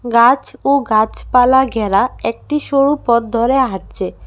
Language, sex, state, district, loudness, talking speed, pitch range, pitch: Bengali, female, Tripura, West Tripura, -15 LUFS, 125 wpm, 230-270 Hz, 250 Hz